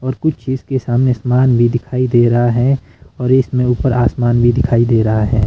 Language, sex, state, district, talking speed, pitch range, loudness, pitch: Hindi, male, Himachal Pradesh, Shimla, 220 wpm, 120-130 Hz, -14 LUFS, 125 Hz